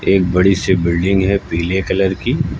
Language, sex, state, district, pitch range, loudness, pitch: Hindi, male, Uttar Pradesh, Lucknow, 90-95 Hz, -15 LUFS, 95 Hz